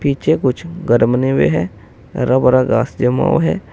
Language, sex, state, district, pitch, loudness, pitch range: Hindi, male, Uttar Pradesh, Saharanpur, 130 Hz, -15 LUFS, 125-145 Hz